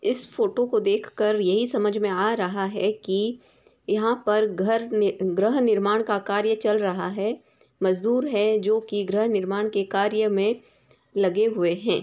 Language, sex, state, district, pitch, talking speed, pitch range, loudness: Hindi, female, Bihar, Samastipur, 210 Hz, 180 wpm, 200-220 Hz, -24 LUFS